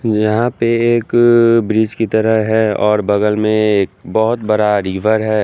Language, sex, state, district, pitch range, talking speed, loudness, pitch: Hindi, male, Chandigarh, Chandigarh, 105-115 Hz, 165 wpm, -14 LUFS, 110 Hz